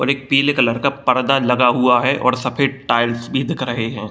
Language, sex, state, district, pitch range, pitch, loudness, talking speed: Hindi, male, Bihar, Gopalganj, 120-135 Hz, 130 Hz, -17 LUFS, 250 wpm